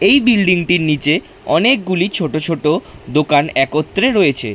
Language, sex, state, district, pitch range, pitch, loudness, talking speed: Bengali, male, West Bengal, Jhargram, 150-205 Hz, 165 Hz, -15 LUFS, 130 wpm